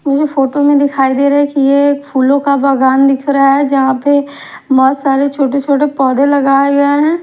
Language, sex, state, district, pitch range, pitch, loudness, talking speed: Hindi, female, Maharashtra, Mumbai Suburban, 275-285 Hz, 280 Hz, -11 LUFS, 215 wpm